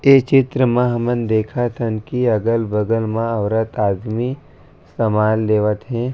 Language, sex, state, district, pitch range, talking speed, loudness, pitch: Chhattisgarhi, male, Chhattisgarh, Raigarh, 110-125 Hz, 125 wpm, -18 LUFS, 115 Hz